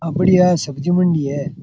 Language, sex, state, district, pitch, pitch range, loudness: Rajasthani, male, Rajasthan, Churu, 170 Hz, 145-180 Hz, -16 LUFS